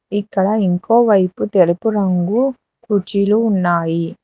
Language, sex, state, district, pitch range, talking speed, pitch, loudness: Telugu, female, Telangana, Hyderabad, 180-215 Hz, 100 wpm, 200 Hz, -16 LUFS